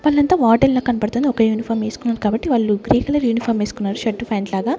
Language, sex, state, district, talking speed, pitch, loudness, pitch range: Telugu, female, Andhra Pradesh, Sri Satya Sai, 200 wpm, 230 Hz, -18 LUFS, 215-255 Hz